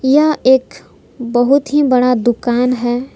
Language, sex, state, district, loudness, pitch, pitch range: Hindi, female, Jharkhand, Palamu, -13 LUFS, 250 Hz, 245-275 Hz